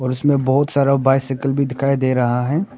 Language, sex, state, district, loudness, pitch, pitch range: Hindi, male, Arunachal Pradesh, Papum Pare, -17 LUFS, 135 Hz, 130-140 Hz